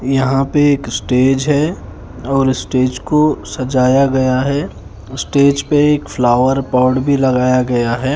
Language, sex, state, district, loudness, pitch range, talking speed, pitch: Hindi, male, Haryana, Charkhi Dadri, -14 LUFS, 125-140 Hz, 145 wpm, 130 Hz